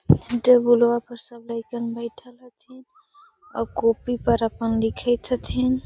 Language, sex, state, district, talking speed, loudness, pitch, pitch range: Magahi, female, Bihar, Gaya, 135 wpm, -22 LUFS, 240 Hz, 230-250 Hz